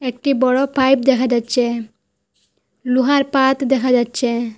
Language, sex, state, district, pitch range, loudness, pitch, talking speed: Bengali, female, Assam, Hailakandi, 235-265 Hz, -16 LUFS, 255 Hz, 120 wpm